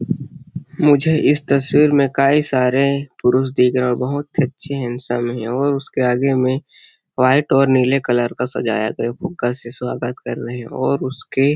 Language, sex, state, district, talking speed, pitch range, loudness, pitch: Hindi, male, Chhattisgarh, Sarguja, 180 wpm, 125-140 Hz, -18 LUFS, 135 Hz